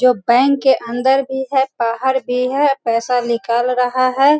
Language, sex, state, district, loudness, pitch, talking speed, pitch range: Hindi, female, Bihar, Sitamarhi, -16 LUFS, 255 Hz, 175 wpm, 240-265 Hz